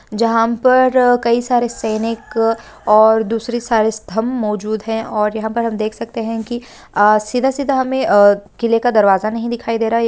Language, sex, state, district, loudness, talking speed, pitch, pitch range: Hindi, female, Bihar, Bhagalpur, -16 LUFS, 180 wpm, 225 Hz, 215-240 Hz